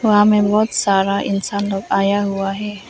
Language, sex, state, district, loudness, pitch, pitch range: Hindi, female, Arunachal Pradesh, Lower Dibang Valley, -17 LUFS, 200 Hz, 195-210 Hz